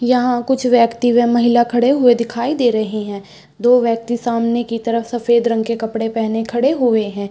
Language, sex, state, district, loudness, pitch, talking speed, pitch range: Hindi, female, Bihar, Madhepura, -16 LUFS, 235 Hz, 195 wpm, 225-245 Hz